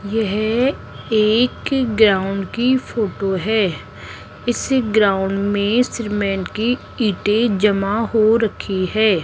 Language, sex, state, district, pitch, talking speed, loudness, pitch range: Hindi, female, Rajasthan, Jaipur, 215 Hz, 105 wpm, -18 LUFS, 195-230 Hz